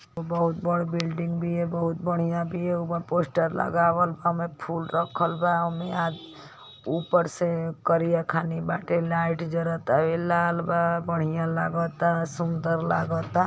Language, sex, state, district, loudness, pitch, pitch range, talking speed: Hindi, male, Uttar Pradesh, Ghazipur, -26 LUFS, 170 Hz, 165-170 Hz, 135 wpm